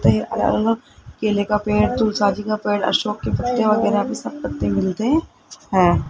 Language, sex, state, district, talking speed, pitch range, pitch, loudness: Hindi, male, Rajasthan, Jaipur, 175 wpm, 205-225 Hz, 210 Hz, -20 LUFS